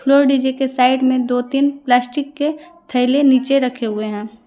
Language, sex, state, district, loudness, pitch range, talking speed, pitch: Hindi, female, Jharkhand, Deoghar, -16 LUFS, 245-280 Hz, 185 wpm, 260 Hz